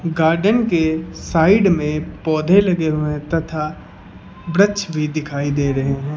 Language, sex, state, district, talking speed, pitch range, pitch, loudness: Hindi, male, Uttar Pradesh, Lucknow, 135 wpm, 150-170 Hz, 160 Hz, -18 LUFS